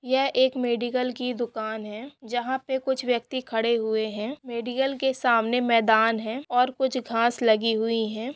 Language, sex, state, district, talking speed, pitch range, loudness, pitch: Maithili, female, Bihar, Supaul, 165 wpm, 225-260 Hz, -25 LUFS, 240 Hz